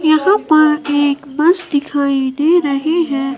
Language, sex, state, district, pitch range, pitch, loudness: Hindi, female, Himachal Pradesh, Shimla, 280-325 Hz, 295 Hz, -14 LUFS